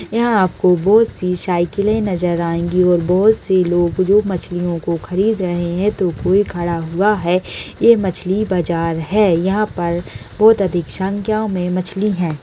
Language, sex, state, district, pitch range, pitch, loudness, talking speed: Hindi, female, Uttar Pradesh, Deoria, 175-205 Hz, 185 Hz, -16 LUFS, 170 wpm